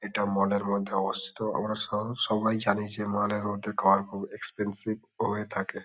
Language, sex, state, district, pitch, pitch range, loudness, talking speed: Bengali, male, West Bengal, Kolkata, 105 Hz, 100-105 Hz, -29 LUFS, 175 wpm